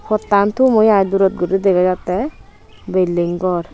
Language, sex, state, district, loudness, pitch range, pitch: Chakma, female, Tripura, West Tripura, -16 LUFS, 175-200 Hz, 185 Hz